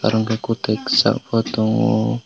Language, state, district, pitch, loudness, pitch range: Kokborok, Tripura, West Tripura, 110 Hz, -19 LUFS, 110-115 Hz